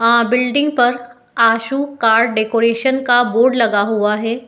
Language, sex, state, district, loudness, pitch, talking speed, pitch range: Hindi, female, Uttar Pradesh, Etah, -15 LUFS, 235 Hz, 160 wpm, 230-245 Hz